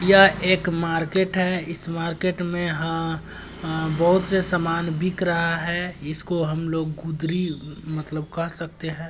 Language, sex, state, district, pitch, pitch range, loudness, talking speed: Hindi, male, Bihar, Gopalganj, 165 Hz, 160-180 Hz, -23 LUFS, 145 wpm